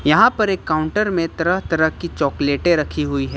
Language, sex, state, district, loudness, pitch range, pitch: Hindi, male, Jharkhand, Ranchi, -18 LUFS, 150-175 Hz, 160 Hz